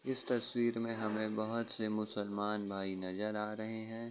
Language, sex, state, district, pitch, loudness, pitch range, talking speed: Hindi, male, Uttar Pradesh, Jyotiba Phule Nagar, 110 Hz, -38 LUFS, 105-115 Hz, 175 wpm